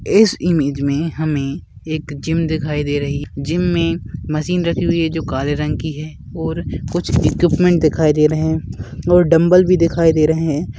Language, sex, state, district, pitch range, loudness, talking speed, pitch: Hindi, male, Rajasthan, Churu, 150-170 Hz, -17 LUFS, 195 wpm, 160 Hz